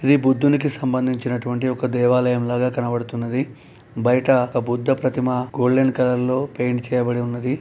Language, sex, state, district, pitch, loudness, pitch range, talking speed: Telugu, male, Telangana, Nalgonda, 125 Hz, -20 LUFS, 120-130 Hz, 135 wpm